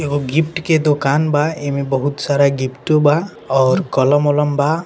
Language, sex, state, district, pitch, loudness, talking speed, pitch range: Bhojpuri, male, Bihar, East Champaran, 145 Hz, -16 LUFS, 175 wpm, 140-155 Hz